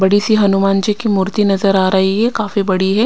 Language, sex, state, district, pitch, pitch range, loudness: Hindi, female, Himachal Pradesh, Shimla, 200 Hz, 190-210 Hz, -14 LUFS